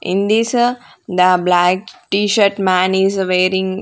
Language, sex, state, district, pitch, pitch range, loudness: English, female, Punjab, Fazilka, 190 Hz, 185-210 Hz, -15 LUFS